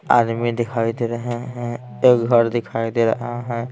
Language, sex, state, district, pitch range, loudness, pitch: Hindi, male, Bihar, Patna, 115-120 Hz, -20 LUFS, 120 Hz